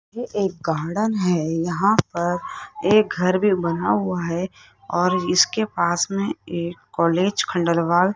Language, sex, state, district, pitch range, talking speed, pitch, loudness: Hindi, female, Rajasthan, Jaipur, 170-200 Hz, 145 wpm, 180 Hz, -21 LUFS